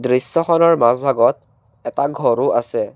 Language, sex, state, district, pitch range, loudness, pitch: Assamese, male, Assam, Kamrup Metropolitan, 125-170 Hz, -16 LUFS, 165 Hz